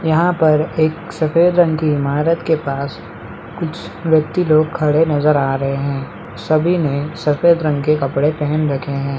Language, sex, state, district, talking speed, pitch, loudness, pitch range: Hindi, male, Bihar, Madhepura, 175 wpm, 155 Hz, -16 LUFS, 140-160 Hz